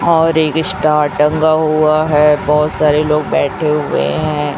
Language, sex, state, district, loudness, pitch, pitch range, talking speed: Hindi, female, Chhattisgarh, Raipur, -13 LUFS, 150 Hz, 150-155 Hz, 155 wpm